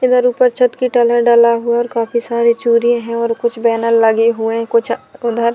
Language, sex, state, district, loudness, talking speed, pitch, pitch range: Hindi, female, Chhattisgarh, Korba, -14 LUFS, 225 wpm, 235 Hz, 230-240 Hz